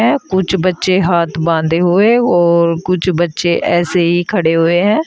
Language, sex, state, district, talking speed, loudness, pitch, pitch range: Hindi, female, Uttar Pradesh, Shamli, 155 wpm, -13 LUFS, 175 Hz, 170-190 Hz